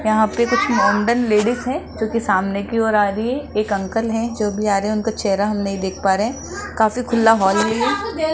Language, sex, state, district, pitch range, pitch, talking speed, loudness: Hindi, female, Rajasthan, Jaipur, 205-235 Hz, 220 Hz, 260 wpm, -19 LUFS